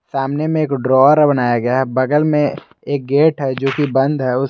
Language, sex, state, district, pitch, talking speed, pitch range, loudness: Hindi, male, Jharkhand, Garhwa, 135 Hz, 215 wpm, 130-150 Hz, -15 LUFS